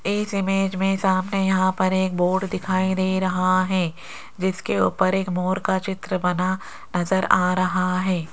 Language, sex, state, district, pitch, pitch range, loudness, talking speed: Hindi, female, Rajasthan, Jaipur, 185 Hz, 185-190 Hz, -22 LUFS, 165 wpm